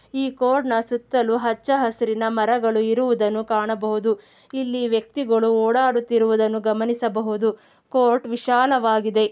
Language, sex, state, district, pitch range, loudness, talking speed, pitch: Kannada, female, Karnataka, Belgaum, 220-245 Hz, -21 LUFS, 105 wpm, 230 Hz